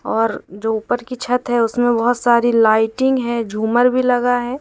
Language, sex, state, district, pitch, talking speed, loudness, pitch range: Hindi, female, Madhya Pradesh, Umaria, 240 Hz, 195 wpm, -17 LUFS, 225-250 Hz